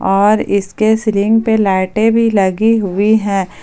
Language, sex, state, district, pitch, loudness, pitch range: Hindi, female, Jharkhand, Palamu, 210 Hz, -13 LUFS, 195-220 Hz